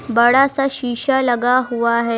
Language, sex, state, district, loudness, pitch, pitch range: Hindi, male, Uttar Pradesh, Lucknow, -16 LUFS, 245 Hz, 235-265 Hz